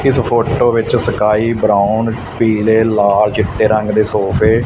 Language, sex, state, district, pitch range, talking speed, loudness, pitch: Punjabi, male, Punjab, Fazilka, 105-115 Hz, 155 wpm, -13 LUFS, 110 Hz